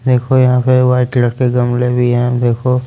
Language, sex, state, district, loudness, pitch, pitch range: Hindi, male, Chandigarh, Chandigarh, -13 LUFS, 125 Hz, 120-125 Hz